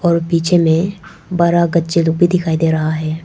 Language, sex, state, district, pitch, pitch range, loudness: Hindi, female, Arunachal Pradesh, Papum Pare, 170 Hz, 160-170 Hz, -15 LUFS